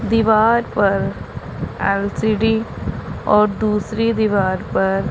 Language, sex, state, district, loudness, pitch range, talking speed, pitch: Hindi, female, Punjab, Pathankot, -18 LUFS, 200-225 Hz, 80 wpm, 215 Hz